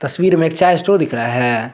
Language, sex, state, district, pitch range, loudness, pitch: Hindi, male, Jharkhand, Garhwa, 120-180 Hz, -15 LUFS, 160 Hz